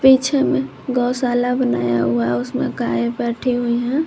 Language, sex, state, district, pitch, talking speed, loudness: Hindi, female, Jharkhand, Garhwa, 240 Hz, 160 wpm, -19 LUFS